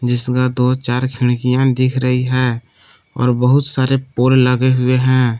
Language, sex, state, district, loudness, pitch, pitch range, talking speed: Hindi, male, Jharkhand, Palamu, -15 LUFS, 125 Hz, 125-130 Hz, 155 wpm